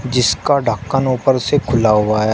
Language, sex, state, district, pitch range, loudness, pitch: Hindi, male, Uttar Pradesh, Shamli, 110-135 Hz, -15 LUFS, 125 Hz